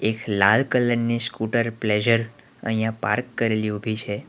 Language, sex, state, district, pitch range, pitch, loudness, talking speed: Gujarati, male, Gujarat, Valsad, 110-120 Hz, 115 Hz, -22 LUFS, 140 wpm